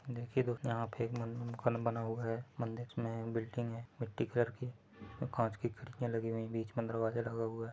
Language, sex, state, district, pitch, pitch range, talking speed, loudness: Hindi, male, Chhattisgarh, Bilaspur, 115 Hz, 115-120 Hz, 235 wpm, -39 LUFS